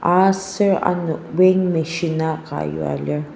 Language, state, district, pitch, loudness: Ao, Nagaland, Dimapur, 165 Hz, -19 LUFS